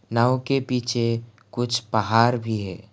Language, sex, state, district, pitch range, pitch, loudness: Hindi, male, Assam, Kamrup Metropolitan, 110-120 Hz, 115 Hz, -23 LUFS